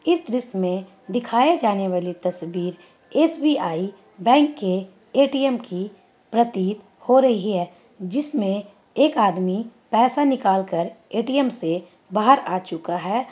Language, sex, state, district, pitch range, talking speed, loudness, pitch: Hindi, female, Bihar, Gaya, 185-250 Hz, 130 wpm, -22 LUFS, 205 Hz